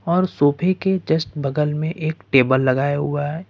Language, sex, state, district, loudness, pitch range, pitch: Hindi, male, Jharkhand, Ranchi, -20 LUFS, 145-170 Hz, 150 Hz